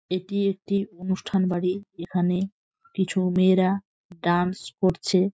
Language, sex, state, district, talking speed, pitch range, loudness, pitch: Bengali, female, West Bengal, Jhargram, 100 wpm, 180-195 Hz, -25 LUFS, 185 Hz